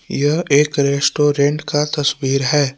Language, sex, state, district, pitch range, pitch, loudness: Hindi, male, Jharkhand, Palamu, 140-150 Hz, 145 Hz, -16 LUFS